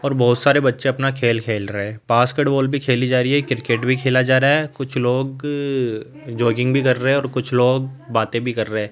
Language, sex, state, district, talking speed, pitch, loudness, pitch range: Hindi, male, Rajasthan, Jaipur, 250 wpm, 130 Hz, -19 LUFS, 120-135 Hz